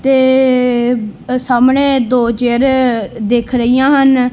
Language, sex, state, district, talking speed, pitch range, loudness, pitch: Punjabi, male, Punjab, Kapurthala, 110 wpm, 240-265 Hz, -12 LUFS, 250 Hz